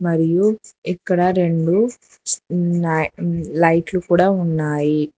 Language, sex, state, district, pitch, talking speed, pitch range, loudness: Telugu, female, Telangana, Hyderabad, 175 Hz, 70 wpm, 165-180 Hz, -18 LUFS